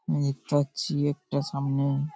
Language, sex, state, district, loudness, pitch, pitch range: Bengali, male, West Bengal, Paschim Medinipur, -28 LUFS, 140 Hz, 140-145 Hz